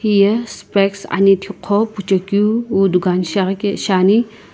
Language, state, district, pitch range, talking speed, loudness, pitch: Sumi, Nagaland, Kohima, 190-210 Hz, 105 wpm, -16 LUFS, 200 Hz